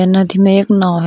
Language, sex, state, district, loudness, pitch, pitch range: Hindi, female, Uttar Pradesh, Shamli, -11 LUFS, 190 Hz, 185-195 Hz